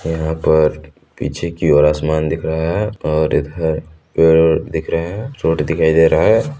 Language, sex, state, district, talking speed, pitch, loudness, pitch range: Hindi, male, Chhattisgarh, Balrampur, 180 wpm, 80 Hz, -16 LUFS, 80-85 Hz